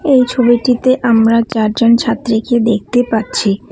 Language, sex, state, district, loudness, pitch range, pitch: Bengali, female, West Bengal, Cooch Behar, -13 LUFS, 225-245 Hz, 235 Hz